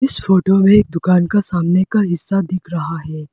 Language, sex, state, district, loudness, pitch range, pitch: Hindi, female, Arunachal Pradesh, Lower Dibang Valley, -15 LUFS, 170-195 Hz, 185 Hz